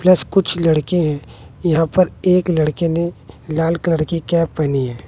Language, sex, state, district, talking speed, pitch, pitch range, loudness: Hindi, male, Bihar, West Champaran, 175 wpm, 165 Hz, 155-175 Hz, -17 LUFS